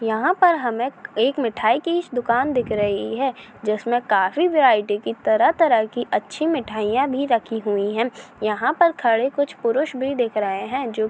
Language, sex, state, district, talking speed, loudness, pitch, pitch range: Hindi, female, Chhattisgarh, Raigarh, 185 wpm, -21 LUFS, 240 Hz, 215-285 Hz